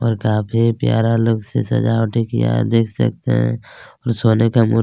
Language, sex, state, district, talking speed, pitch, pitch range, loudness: Hindi, male, Chhattisgarh, Kabirdham, 185 wpm, 115 Hz, 110-115 Hz, -17 LUFS